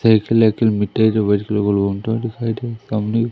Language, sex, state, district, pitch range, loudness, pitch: Hindi, male, Madhya Pradesh, Umaria, 105-115 Hz, -18 LUFS, 110 Hz